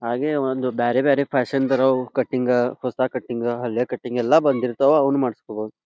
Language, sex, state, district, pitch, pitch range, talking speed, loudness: Kannada, male, Karnataka, Belgaum, 125 Hz, 120-135 Hz, 155 wpm, -21 LUFS